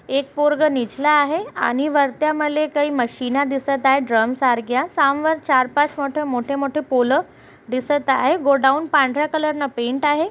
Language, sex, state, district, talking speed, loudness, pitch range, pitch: Marathi, female, Maharashtra, Chandrapur, 150 wpm, -19 LUFS, 260-300 Hz, 280 Hz